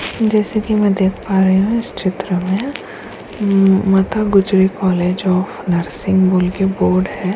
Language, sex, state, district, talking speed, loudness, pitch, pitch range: Hindi, female, Bihar, Kishanganj, 155 wpm, -16 LUFS, 190 Hz, 185-205 Hz